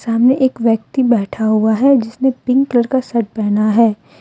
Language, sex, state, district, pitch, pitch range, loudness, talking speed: Hindi, female, Jharkhand, Deoghar, 235 Hz, 220-260 Hz, -15 LUFS, 200 wpm